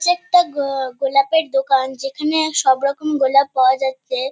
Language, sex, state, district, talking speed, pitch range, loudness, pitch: Bengali, female, West Bengal, Kolkata, 150 wpm, 265-305 Hz, -17 LUFS, 275 Hz